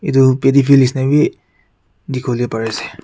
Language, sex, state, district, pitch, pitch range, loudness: Nagamese, male, Nagaland, Kohima, 130 Hz, 115-135 Hz, -14 LUFS